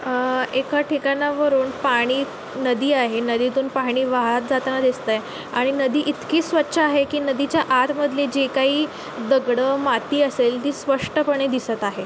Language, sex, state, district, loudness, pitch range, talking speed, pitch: Marathi, female, Maharashtra, Chandrapur, -21 LUFS, 255-285 Hz, 145 wpm, 270 Hz